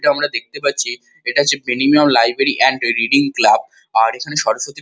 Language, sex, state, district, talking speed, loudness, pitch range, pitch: Bengali, male, West Bengal, Kolkata, 160 wpm, -16 LUFS, 125-150 Hz, 140 Hz